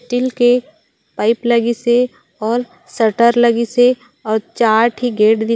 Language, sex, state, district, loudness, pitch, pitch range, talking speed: Chhattisgarhi, female, Chhattisgarh, Raigarh, -15 LUFS, 235 Hz, 225-245 Hz, 150 wpm